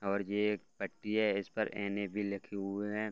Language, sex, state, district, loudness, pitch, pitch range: Hindi, male, Bihar, Gopalganj, -36 LUFS, 100 Hz, 100-105 Hz